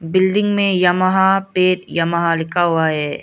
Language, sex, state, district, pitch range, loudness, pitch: Hindi, female, Arunachal Pradesh, Lower Dibang Valley, 165-190 Hz, -16 LUFS, 180 Hz